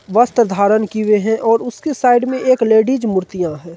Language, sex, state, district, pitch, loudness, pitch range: Hindi, male, Bihar, Supaul, 220 Hz, -15 LUFS, 205-245 Hz